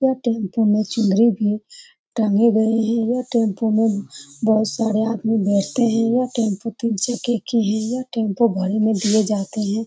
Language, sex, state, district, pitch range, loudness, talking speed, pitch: Hindi, female, Bihar, Saran, 210-235 Hz, -20 LUFS, 165 wpm, 220 Hz